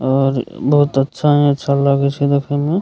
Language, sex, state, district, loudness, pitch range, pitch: Maithili, male, Bihar, Begusarai, -16 LUFS, 135-145 Hz, 140 Hz